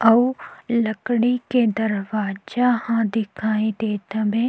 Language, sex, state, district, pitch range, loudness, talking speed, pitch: Chhattisgarhi, female, Chhattisgarh, Sukma, 215-240 Hz, -22 LUFS, 95 wpm, 225 Hz